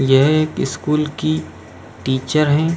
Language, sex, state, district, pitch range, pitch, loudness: Hindi, male, Uttar Pradesh, Jalaun, 110-150 Hz, 135 Hz, -18 LUFS